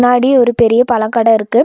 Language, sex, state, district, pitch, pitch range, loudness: Tamil, female, Tamil Nadu, Nilgiris, 240 Hz, 225-245 Hz, -11 LUFS